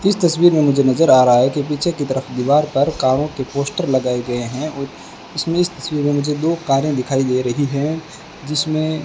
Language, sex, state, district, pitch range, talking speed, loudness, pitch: Hindi, male, Rajasthan, Bikaner, 130-155 Hz, 225 wpm, -17 LUFS, 145 Hz